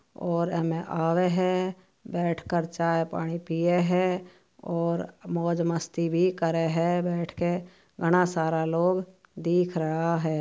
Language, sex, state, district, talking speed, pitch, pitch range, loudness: Marwari, female, Rajasthan, Churu, 140 wpm, 170 Hz, 165-180 Hz, -27 LUFS